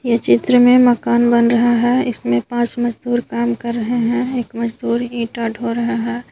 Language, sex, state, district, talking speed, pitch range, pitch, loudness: Hindi, female, Jharkhand, Garhwa, 200 wpm, 235-245 Hz, 235 Hz, -16 LUFS